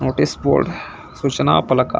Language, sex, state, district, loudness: Kannada, male, Karnataka, Belgaum, -18 LUFS